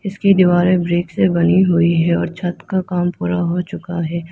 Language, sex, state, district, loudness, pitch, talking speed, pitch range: Hindi, female, Arunachal Pradesh, Lower Dibang Valley, -16 LUFS, 175 Hz, 210 wpm, 170-185 Hz